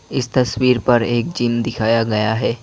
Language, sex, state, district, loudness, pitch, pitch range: Hindi, male, Assam, Kamrup Metropolitan, -17 LUFS, 120 Hz, 115-125 Hz